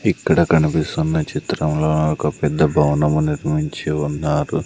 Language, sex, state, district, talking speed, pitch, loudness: Telugu, male, Andhra Pradesh, Sri Satya Sai, 105 wpm, 75 Hz, -19 LUFS